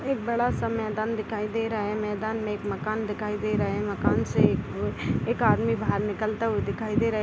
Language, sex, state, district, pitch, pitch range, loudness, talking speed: Hindi, female, Bihar, Gopalganj, 215 Hz, 210-225 Hz, -27 LUFS, 265 wpm